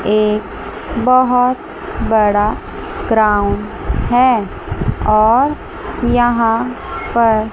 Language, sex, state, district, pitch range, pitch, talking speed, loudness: Hindi, female, Chandigarh, Chandigarh, 215-250 Hz, 230 Hz, 65 wpm, -15 LUFS